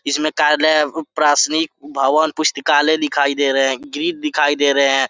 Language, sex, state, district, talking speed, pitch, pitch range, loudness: Hindi, male, Jharkhand, Sahebganj, 165 wpm, 150 Hz, 140-155 Hz, -16 LUFS